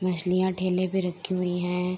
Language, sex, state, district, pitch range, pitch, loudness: Hindi, female, Bihar, Saharsa, 180-185 Hz, 185 Hz, -27 LUFS